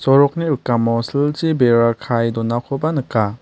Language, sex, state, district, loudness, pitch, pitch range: Garo, male, Meghalaya, West Garo Hills, -17 LUFS, 125 Hz, 115-145 Hz